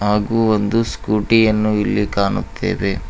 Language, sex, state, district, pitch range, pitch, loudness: Kannada, male, Karnataka, Koppal, 100-110 Hz, 105 Hz, -17 LUFS